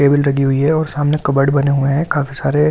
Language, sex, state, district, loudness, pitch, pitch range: Hindi, male, Delhi, New Delhi, -15 LUFS, 140 Hz, 140-150 Hz